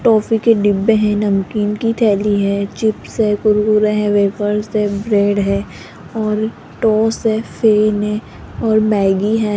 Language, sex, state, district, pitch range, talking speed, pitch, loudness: Hindi, female, Rajasthan, Jaipur, 205-220 Hz, 150 wpm, 210 Hz, -16 LUFS